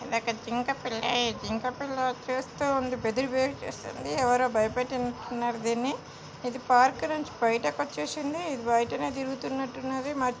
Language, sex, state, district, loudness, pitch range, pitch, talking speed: Telugu, female, Telangana, Nalgonda, -29 LUFS, 235-265 Hz, 250 Hz, 135 wpm